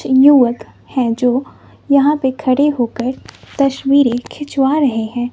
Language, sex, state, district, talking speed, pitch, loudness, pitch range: Hindi, female, Bihar, West Champaran, 125 wpm, 265 Hz, -15 LUFS, 245-280 Hz